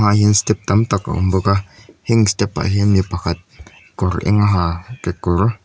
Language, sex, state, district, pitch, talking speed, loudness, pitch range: Mizo, male, Mizoram, Aizawl, 100 Hz, 200 wpm, -17 LUFS, 95-105 Hz